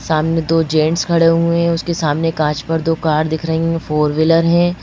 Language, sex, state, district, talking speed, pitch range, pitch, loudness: Hindi, female, Madhya Pradesh, Bhopal, 225 wpm, 155-165 Hz, 165 Hz, -15 LUFS